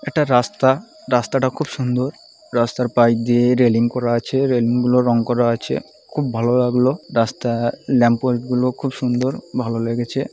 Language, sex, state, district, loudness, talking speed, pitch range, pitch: Bengali, male, West Bengal, North 24 Parganas, -19 LUFS, 155 wpm, 120-130 Hz, 125 Hz